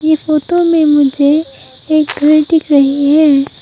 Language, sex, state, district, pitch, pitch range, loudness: Hindi, female, Arunachal Pradesh, Papum Pare, 305 Hz, 285-315 Hz, -11 LUFS